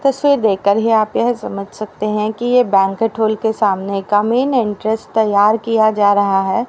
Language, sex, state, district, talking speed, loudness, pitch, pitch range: Hindi, female, Haryana, Rohtak, 205 wpm, -15 LUFS, 215 Hz, 205-230 Hz